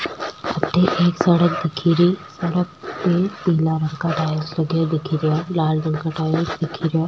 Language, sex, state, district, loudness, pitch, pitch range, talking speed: Rajasthani, female, Rajasthan, Churu, -20 LUFS, 160 Hz, 160-175 Hz, 170 wpm